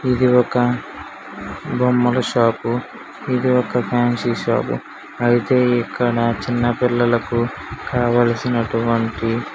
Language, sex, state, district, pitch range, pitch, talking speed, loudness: Telugu, male, Telangana, Karimnagar, 115-125 Hz, 120 Hz, 95 wpm, -19 LUFS